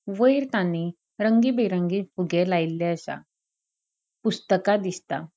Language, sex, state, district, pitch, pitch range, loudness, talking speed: Konkani, female, Goa, North and South Goa, 190 Hz, 175-220 Hz, -24 LUFS, 100 wpm